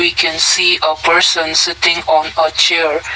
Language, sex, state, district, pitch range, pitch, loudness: English, male, Assam, Kamrup Metropolitan, 155-170 Hz, 165 Hz, -12 LUFS